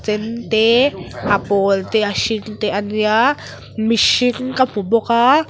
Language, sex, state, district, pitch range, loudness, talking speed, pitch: Mizo, female, Mizoram, Aizawl, 210-235 Hz, -16 LUFS, 150 wpm, 220 Hz